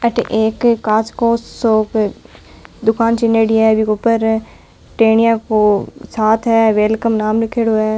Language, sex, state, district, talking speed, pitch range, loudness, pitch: Marwari, female, Rajasthan, Nagaur, 135 wpm, 220-230 Hz, -15 LUFS, 220 Hz